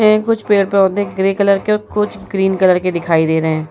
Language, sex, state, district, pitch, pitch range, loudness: Hindi, female, Uttar Pradesh, Muzaffarnagar, 195 Hz, 180-210 Hz, -15 LUFS